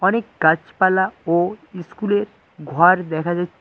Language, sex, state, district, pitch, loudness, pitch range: Bengali, male, West Bengal, Cooch Behar, 180 Hz, -19 LUFS, 170-190 Hz